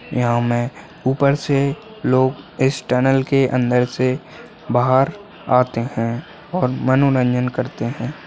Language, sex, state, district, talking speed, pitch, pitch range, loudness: Hindi, male, Chhattisgarh, Balrampur, 125 wpm, 130 Hz, 125-140 Hz, -19 LUFS